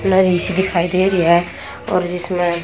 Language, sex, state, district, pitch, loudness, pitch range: Hindi, female, Haryana, Jhajjar, 180 Hz, -17 LUFS, 175-190 Hz